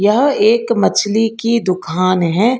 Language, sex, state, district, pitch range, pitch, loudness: Hindi, female, Karnataka, Bangalore, 185-235 Hz, 215 Hz, -14 LUFS